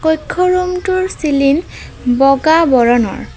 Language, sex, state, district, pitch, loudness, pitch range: Assamese, female, Assam, Kamrup Metropolitan, 315 Hz, -13 LUFS, 270-365 Hz